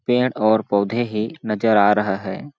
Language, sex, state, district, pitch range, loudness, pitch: Hindi, male, Chhattisgarh, Balrampur, 105-125 Hz, -19 LUFS, 110 Hz